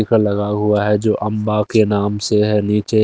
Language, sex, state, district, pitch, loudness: Hindi, male, Delhi, New Delhi, 105 Hz, -16 LUFS